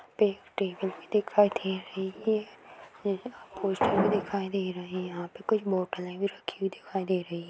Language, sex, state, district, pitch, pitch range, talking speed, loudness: Kumaoni, female, Uttarakhand, Uttarkashi, 195 Hz, 185-205 Hz, 210 wpm, -30 LUFS